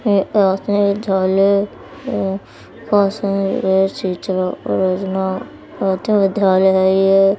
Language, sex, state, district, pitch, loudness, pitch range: Hindi, female, Uttar Pradesh, Etah, 195 Hz, -17 LUFS, 190-200 Hz